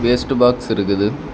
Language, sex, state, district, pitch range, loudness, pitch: Tamil, male, Tamil Nadu, Kanyakumari, 105-125 Hz, -17 LUFS, 125 Hz